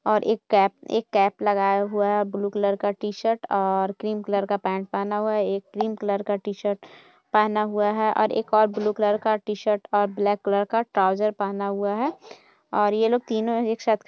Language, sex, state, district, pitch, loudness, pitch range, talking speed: Hindi, female, Bihar, Jamui, 205 Hz, -24 LUFS, 200-215 Hz, 220 wpm